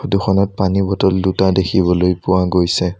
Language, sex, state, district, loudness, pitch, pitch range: Assamese, male, Assam, Sonitpur, -15 LUFS, 95 Hz, 90-95 Hz